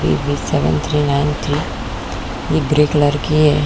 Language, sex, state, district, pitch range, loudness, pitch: Hindi, female, Chhattisgarh, Korba, 110-150 Hz, -17 LUFS, 145 Hz